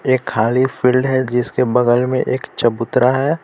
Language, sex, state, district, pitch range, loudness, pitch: Hindi, male, Jharkhand, Palamu, 120-130 Hz, -16 LUFS, 125 Hz